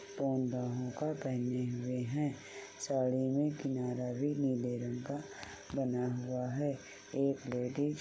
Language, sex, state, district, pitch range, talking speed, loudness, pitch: Hindi, male, Uttar Pradesh, Jalaun, 125-140 Hz, 135 wpm, -36 LUFS, 130 Hz